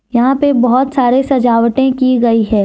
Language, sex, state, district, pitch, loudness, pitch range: Hindi, female, Jharkhand, Deoghar, 250 Hz, -12 LUFS, 235-265 Hz